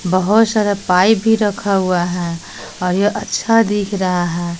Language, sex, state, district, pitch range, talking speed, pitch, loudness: Hindi, female, Bihar, West Champaran, 180-210 Hz, 170 wpm, 195 Hz, -16 LUFS